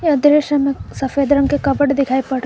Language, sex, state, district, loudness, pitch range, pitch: Hindi, female, Jharkhand, Garhwa, -16 LUFS, 275-290 Hz, 280 Hz